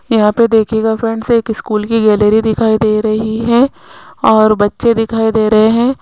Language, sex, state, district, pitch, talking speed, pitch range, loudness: Hindi, female, Rajasthan, Jaipur, 220 Hz, 180 wpm, 215-230 Hz, -12 LUFS